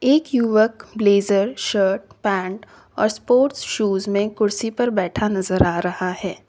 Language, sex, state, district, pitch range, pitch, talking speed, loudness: Hindi, female, Uttar Pradesh, Lalitpur, 195-225 Hz, 205 Hz, 150 wpm, -20 LUFS